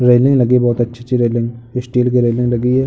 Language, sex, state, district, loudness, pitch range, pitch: Hindi, male, Uttar Pradesh, Jalaun, -15 LUFS, 120-125 Hz, 125 Hz